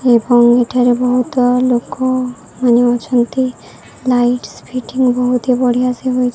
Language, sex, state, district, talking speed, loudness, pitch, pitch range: Odia, female, Odisha, Sambalpur, 125 wpm, -14 LUFS, 250 Hz, 245-255 Hz